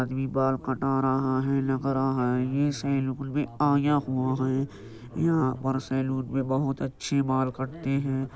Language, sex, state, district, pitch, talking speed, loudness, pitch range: Hindi, male, Uttar Pradesh, Jyotiba Phule Nagar, 135 Hz, 165 wpm, -27 LUFS, 130-135 Hz